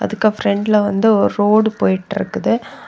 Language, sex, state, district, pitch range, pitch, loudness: Tamil, female, Tamil Nadu, Kanyakumari, 205-220 Hz, 210 Hz, -16 LUFS